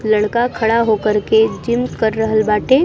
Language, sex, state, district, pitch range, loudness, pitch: Bhojpuri, female, Bihar, East Champaran, 215-235 Hz, -16 LUFS, 220 Hz